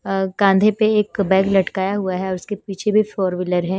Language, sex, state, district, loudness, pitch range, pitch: Hindi, female, Himachal Pradesh, Shimla, -19 LUFS, 190-205 Hz, 195 Hz